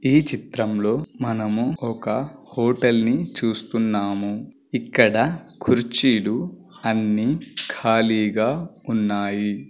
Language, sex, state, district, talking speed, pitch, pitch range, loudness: Telugu, male, Andhra Pradesh, Guntur, 75 wpm, 115 Hz, 105-120 Hz, -22 LUFS